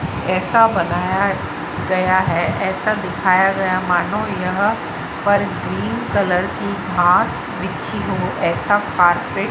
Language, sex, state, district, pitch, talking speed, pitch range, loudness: Hindi, female, Maharashtra, Washim, 190 Hz, 120 wpm, 180-205 Hz, -18 LUFS